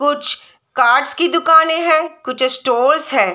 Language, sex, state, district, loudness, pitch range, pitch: Hindi, female, Bihar, Sitamarhi, -14 LUFS, 255-320 Hz, 300 Hz